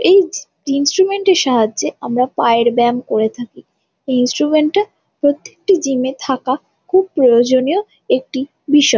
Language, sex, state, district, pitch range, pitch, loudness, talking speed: Bengali, female, West Bengal, Jalpaiguri, 245-345 Hz, 270 Hz, -15 LUFS, 140 wpm